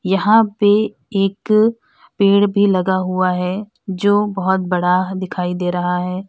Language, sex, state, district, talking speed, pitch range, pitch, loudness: Hindi, female, Uttar Pradesh, Lalitpur, 145 wpm, 185-205 Hz, 195 Hz, -17 LUFS